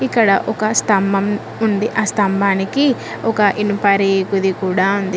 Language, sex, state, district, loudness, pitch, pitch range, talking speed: Telugu, female, Telangana, Mahabubabad, -16 LUFS, 200 Hz, 195-220 Hz, 125 wpm